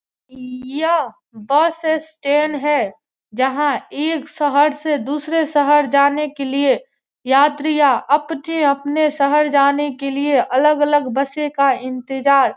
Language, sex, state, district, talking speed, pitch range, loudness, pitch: Hindi, female, Bihar, Gopalganj, 115 wpm, 275-300 Hz, -17 LUFS, 290 Hz